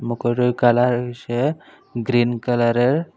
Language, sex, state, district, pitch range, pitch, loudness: Bengali, male, Tripura, Unakoti, 120-125 Hz, 120 Hz, -20 LUFS